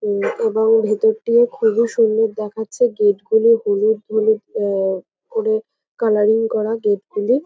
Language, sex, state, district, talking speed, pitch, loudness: Bengali, female, West Bengal, North 24 Parganas, 130 wpm, 255 Hz, -18 LUFS